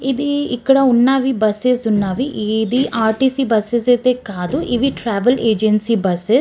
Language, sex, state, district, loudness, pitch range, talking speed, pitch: Telugu, female, Andhra Pradesh, Srikakulam, -16 LUFS, 215-265 Hz, 140 wpm, 240 Hz